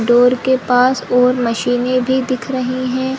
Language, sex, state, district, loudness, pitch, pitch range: Hindi, female, Chhattisgarh, Bilaspur, -15 LUFS, 255 Hz, 245-260 Hz